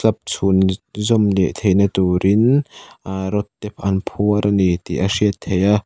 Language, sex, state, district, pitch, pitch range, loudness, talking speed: Mizo, male, Mizoram, Aizawl, 100 Hz, 95-105 Hz, -18 LUFS, 185 wpm